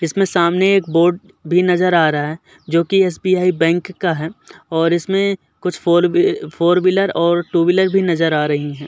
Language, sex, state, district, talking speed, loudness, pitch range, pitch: Hindi, male, Uttar Pradesh, Muzaffarnagar, 195 wpm, -16 LUFS, 165-190 Hz, 175 Hz